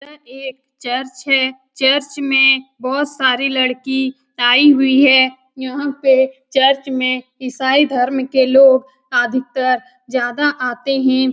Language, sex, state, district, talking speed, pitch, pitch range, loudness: Hindi, female, Bihar, Lakhisarai, 125 wpm, 265 Hz, 255-270 Hz, -15 LUFS